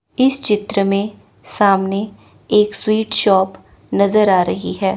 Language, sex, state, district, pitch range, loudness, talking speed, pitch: Hindi, female, Chandigarh, Chandigarh, 195-215 Hz, -16 LUFS, 130 wpm, 200 Hz